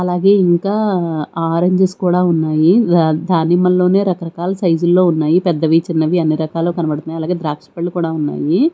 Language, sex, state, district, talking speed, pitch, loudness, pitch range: Telugu, female, Andhra Pradesh, Manyam, 135 wpm, 170 Hz, -15 LUFS, 160-180 Hz